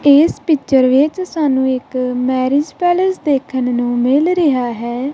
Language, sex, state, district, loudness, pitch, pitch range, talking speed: Punjabi, female, Punjab, Kapurthala, -15 LUFS, 270 Hz, 255-305 Hz, 140 wpm